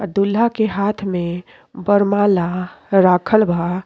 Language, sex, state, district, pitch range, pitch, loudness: Bhojpuri, female, Uttar Pradesh, Deoria, 180-205 Hz, 200 Hz, -17 LUFS